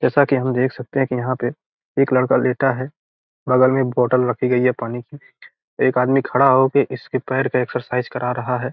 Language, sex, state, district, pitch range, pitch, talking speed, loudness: Hindi, male, Bihar, Gopalganj, 125-135 Hz, 130 Hz, 225 wpm, -19 LUFS